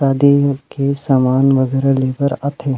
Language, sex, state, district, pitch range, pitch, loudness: Chhattisgarhi, male, Chhattisgarh, Rajnandgaon, 135-140 Hz, 135 Hz, -15 LUFS